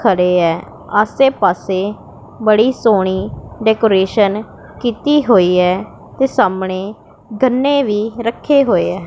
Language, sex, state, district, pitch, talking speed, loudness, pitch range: Punjabi, female, Punjab, Pathankot, 215 Hz, 110 wpm, -15 LUFS, 190-250 Hz